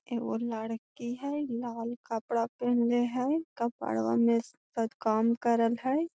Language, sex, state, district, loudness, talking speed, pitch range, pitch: Magahi, female, Bihar, Gaya, -31 LUFS, 125 wpm, 230-245 Hz, 235 Hz